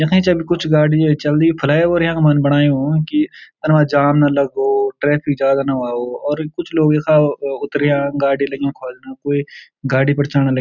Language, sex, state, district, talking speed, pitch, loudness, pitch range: Garhwali, male, Uttarakhand, Uttarkashi, 180 wpm, 145 Hz, -16 LUFS, 140-155 Hz